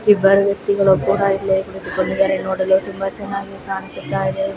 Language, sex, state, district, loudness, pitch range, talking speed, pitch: Kannada, female, Karnataka, Raichur, -18 LUFS, 190-195 Hz, 105 wpm, 195 Hz